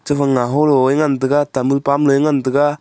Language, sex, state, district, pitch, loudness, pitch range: Wancho, male, Arunachal Pradesh, Longding, 140 Hz, -15 LUFS, 135-145 Hz